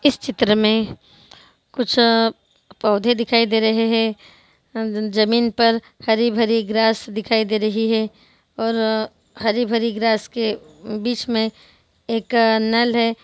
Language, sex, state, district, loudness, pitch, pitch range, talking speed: Hindi, female, Bihar, Sitamarhi, -19 LUFS, 225 Hz, 220-230 Hz, 120 wpm